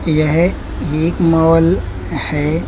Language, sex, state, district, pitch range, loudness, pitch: Hindi, male, Uttar Pradesh, Budaun, 155-165 Hz, -15 LUFS, 160 Hz